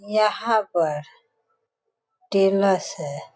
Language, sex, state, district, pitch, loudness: Hindi, female, Bihar, Sitamarhi, 215 Hz, -22 LUFS